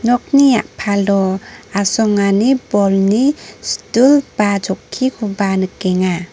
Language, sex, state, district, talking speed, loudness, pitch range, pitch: Garo, female, Meghalaya, North Garo Hills, 75 wpm, -15 LUFS, 195-245 Hz, 205 Hz